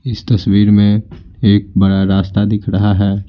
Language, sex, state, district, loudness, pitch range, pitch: Hindi, male, Bihar, Patna, -13 LUFS, 95-105 Hz, 100 Hz